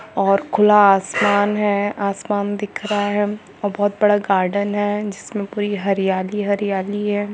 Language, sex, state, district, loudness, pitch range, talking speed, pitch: Hindi, female, Jharkhand, Jamtara, -19 LUFS, 200-205 Hz, 165 wpm, 205 Hz